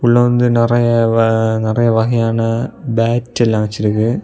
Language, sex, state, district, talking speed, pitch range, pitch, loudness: Tamil, male, Tamil Nadu, Kanyakumari, 125 wpm, 110-120 Hz, 115 Hz, -14 LUFS